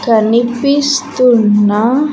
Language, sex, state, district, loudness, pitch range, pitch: Telugu, female, Andhra Pradesh, Sri Satya Sai, -11 LUFS, 220-275 Hz, 240 Hz